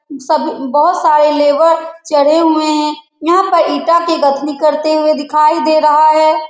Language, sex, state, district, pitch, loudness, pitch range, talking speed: Hindi, female, Bihar, Saran, 310 Hz, -12 LUFS, 300-320 Hz, 165 wpm